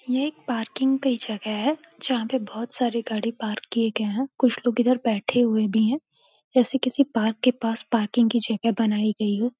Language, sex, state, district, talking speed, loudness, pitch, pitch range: Hindi, female, Uttar Pradesh, Gorakhpur, 215 wpm, -24 LUFS, 235 Hz, 220-255 Hz